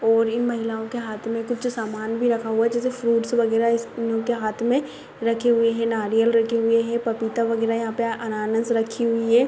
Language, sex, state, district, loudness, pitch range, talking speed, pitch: Hindi, female, Bihar, East Champaran, -23 LUFS, 225-235 Hz, 210 wpm, 230 Hz